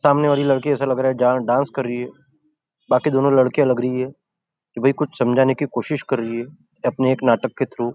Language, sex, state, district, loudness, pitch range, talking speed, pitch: Hindi, male, Maharashtra, Nagpur, -20 LUFS, 125-145 Hz, 235 wpm, 130 Hz